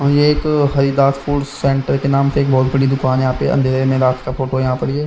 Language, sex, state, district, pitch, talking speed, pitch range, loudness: Hindi, male, Haryana, Rohtak, 135 Hz, 260 wpm, 130-140 Hz, -16 LUFS